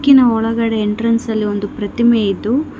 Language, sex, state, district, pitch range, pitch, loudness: Kannada, female, Karnataka, Bangalore, 210-235 Hz, 225 Hz, -15 LUFS